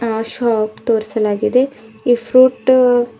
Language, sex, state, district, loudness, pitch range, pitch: Kannada, female, Karnataka, Bidar, -15 LUFS, 220-250 Hz, 235 Hz